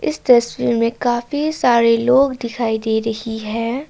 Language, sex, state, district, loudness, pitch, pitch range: Hindi, female, Assam, Kamrup Metropolitan, -17 LUFS, 235 Hz, 225-245 Hz